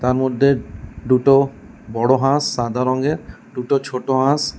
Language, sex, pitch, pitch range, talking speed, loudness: Bengali, male, 130 Hz, 125-140 Hz, 115 wpm, -18 LUFS